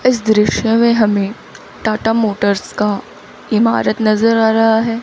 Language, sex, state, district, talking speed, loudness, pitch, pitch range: Hindi, female, Chandigarh, Chandigarh, 145 wpm, -14 LUFS, 220 Hz, 210-225 Hz